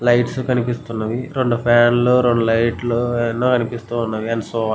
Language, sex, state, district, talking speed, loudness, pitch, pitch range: Telugu, male, Andhra Pradesh, Guntur, 150 wpm, -18 LUFS, 120 Hz, 115-120 Hz